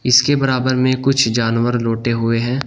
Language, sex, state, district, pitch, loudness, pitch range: Hindi, male, Uttar Pradesh, Shamli, 125 Hz, -16 LUFS, 115-130 Hz